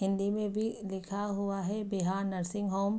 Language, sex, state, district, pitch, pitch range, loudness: Hindi, female, Bihar, Araria, 200 Hz, 195-205 Hz, -34 LUFS